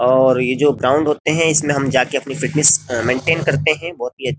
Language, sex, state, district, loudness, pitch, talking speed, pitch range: Hindi, male, Uttar Pradesh, Jyotiba Phule Nagar, -16 LUFS, 140 Hz, 230 wpm, 130-155 Hz